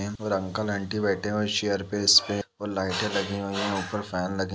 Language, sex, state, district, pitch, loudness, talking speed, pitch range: Hindi, male, Uttar Pradesh, Etah, 100 Hz, -26 LUFS, 290 wpm, 95-105 Hz